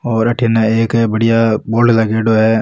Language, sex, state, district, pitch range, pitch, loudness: Rajasthani, male, Rajasthan, Nagaur, 110-115 Hz, 115 Hz, -13 LUFS